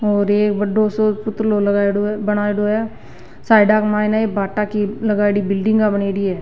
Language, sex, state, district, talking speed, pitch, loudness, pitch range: Rajasthani, female, Rajasthan, Nagaur, 150 wpm, 210 Hz, -17 LUFS, 205-215 Hz